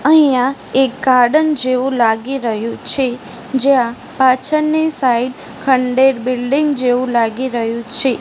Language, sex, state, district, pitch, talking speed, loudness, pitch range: Gujarati, female, Gujarat, Gandhinagar, 255 Hz, 115 wpm, -15 LUFS, 245-270 Hz